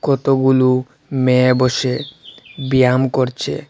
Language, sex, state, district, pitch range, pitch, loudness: Bengali, male, Assam, Hailakandi, 130-135 Hz, 130 Hz, -16 LUFS